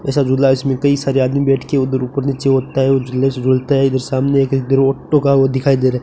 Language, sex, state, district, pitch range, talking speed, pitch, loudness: Hindi, male, Rajasthan, Bikaner, 130-140 Hz, 230 wpm, 135 Hz, -15 LUFS